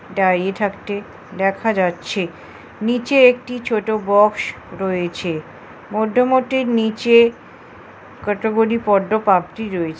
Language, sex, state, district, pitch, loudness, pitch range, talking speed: Bengali, female, West Bengal, Jhargram, 210 Hz, -18 LUFS, 190-230 Hz, 90 wpm